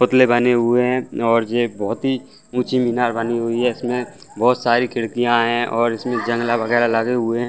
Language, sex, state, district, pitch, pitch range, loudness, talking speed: Hindi, male, Jharkhand, Jamtara, 120 Hz, 115-125 Hz, -19 LUFS, 190 wpm